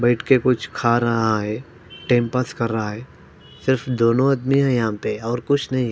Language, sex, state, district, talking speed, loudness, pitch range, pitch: Hindi, male, Punjab, Fazilka, 205 wpm, -20 LUFS, 115-130 Hz, 120 Hz